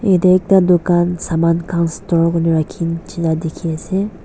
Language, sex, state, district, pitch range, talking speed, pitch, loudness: Nagamese, female, Nagaland, Dimapur, 165-185 Hz, 170 wpm, 170 Hz, -16 LUFS